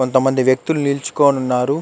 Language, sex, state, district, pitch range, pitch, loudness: Telugu, male, Andhra Pradesh, Chittoor, 130-140 Hz, 135 Hz, -17 LUFS